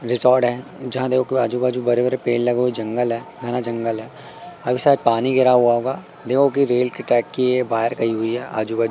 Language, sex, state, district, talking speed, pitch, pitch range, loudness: Hindi, male, Madhya Pradesh, Katni, 240 wpm, 125 Hz, 115-130 Hz, -19 LUFS